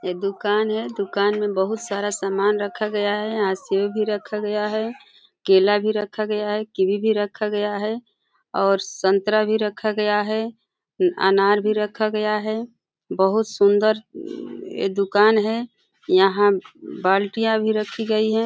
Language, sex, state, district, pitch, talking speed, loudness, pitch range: Hindi, female, Uttar Pradesh, Deoria, 210 Hz, 160 wpm, -21 LUFS, 200-215 Hz